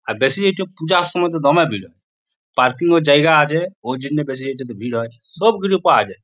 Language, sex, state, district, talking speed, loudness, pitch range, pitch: Bengali, male, West Bengal, Purulia, 230 wpm, -17 LUFS, 130-175 Hz, 155 Hz